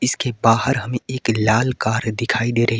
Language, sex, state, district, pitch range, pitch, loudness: Hindi, male, Jharkhand, Garhwa, 115-125 Hz, 120 Hz, -19 LUFS